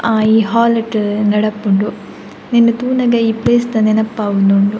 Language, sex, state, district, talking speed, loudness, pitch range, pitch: Tulu, female, Karnataka, Dakshina Kannada, 110 wpm, -14 LUFS, 210-230 Hz, 220 Hz